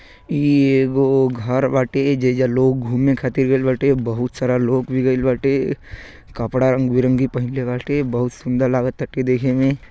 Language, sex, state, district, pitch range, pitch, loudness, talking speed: Bhojpuri, male, Uttar Pradesh, Gorakhpur, 125-135 Hz, 130 Hz, -18 LUFS, 165 wpm